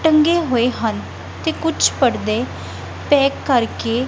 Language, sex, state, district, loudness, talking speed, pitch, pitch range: Punjabi, female, Punjab, Kapurthala, -18 LUFS, 115 wpm, 280 Hz, 245-320 Hz